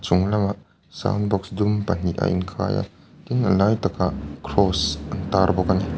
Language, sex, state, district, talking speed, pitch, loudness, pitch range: Mizo, male, Mizoram, Aizawl, 170 wpm, 95 Hz, -22 LUFS, 90-100 Hz